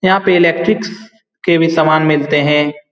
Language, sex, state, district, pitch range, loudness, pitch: Hindi, male, Bihar, Saran, 150-185 Hz, -13 LUFS, 165 Hz